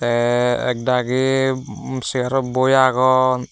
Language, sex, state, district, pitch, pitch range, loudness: Chakma, male, Tripura, Dhalai, 130 Hz, 125-130 Hz, -18 LUFS